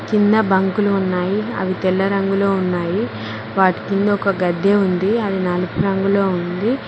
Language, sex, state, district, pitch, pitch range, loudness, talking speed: Telugu, female, Telangana, Mahabubabad, 195 Hz, 180-200 Hz, -18 LUFS, 140 wpm